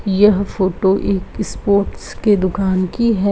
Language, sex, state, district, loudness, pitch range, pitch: Hindi, female, Bihar, Araria, -17 LUFS, 190-205 Hz, 195 Hz